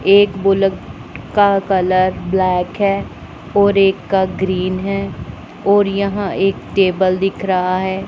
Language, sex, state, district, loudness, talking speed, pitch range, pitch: Hindi, male, Punjab, Pathankot, -16 LUFS, 135 wpm, 185-200 Hz, 195 Hz